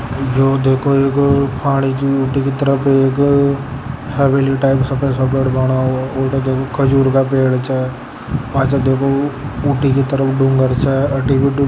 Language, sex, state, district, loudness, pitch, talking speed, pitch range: Hindi, male, Rajasthan, Nagaur, -15 LUFS, 135 Hz, 135 wpm, 135-140 Hz